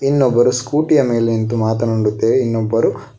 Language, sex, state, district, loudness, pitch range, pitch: Kannada, male, Karnataka, Bangalore, -16 LUFS, 115-130 Hz, 115 Hz